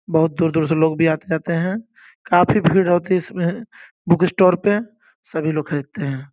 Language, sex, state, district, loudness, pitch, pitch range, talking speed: Hindi, male, Uttar Pradesh, Gorakhpur, -19 LUFS, 170 Hz, 160-185 Hz, 190 wpm